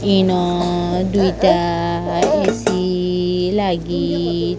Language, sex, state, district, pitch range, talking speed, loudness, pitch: Odia, female, Odisha, Sambalpur, 170-190 Hz, 65 wpm, -18 LUFS, 180 Hz